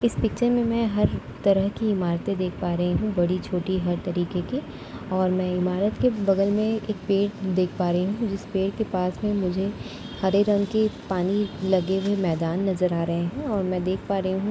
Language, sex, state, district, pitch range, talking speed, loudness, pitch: Hindi, female, Uttar Pradesh, Etah, 180-205 Hz, 215 wpm, -25 LUFS, 190 Hz